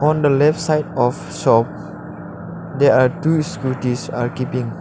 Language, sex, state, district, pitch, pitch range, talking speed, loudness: English, male, Arunachal Pradesh, Lower Dibang Valley, 130 Hz, 125-155 Hz, 150 wpm, -18 LUFS